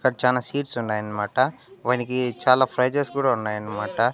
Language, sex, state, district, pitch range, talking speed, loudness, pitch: Telugu, male, Andhra Pradesh, Annamaya, 110-130 Hz, 130 wpm, -23 LUFS, 125 Hz